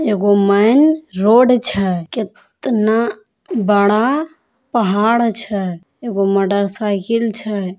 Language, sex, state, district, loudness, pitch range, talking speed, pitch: Hindi, female, Bihar, Begusarai, -15 LUFS, 200-230 Hz, 85 wpm, 210 Hz